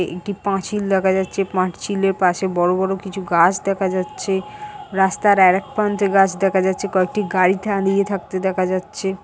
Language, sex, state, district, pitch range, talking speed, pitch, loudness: Bengali, female, West Bengal, Paschim Medinipur, 185-200 Hz, 155 wpm, 195 Hz, -19 LUFS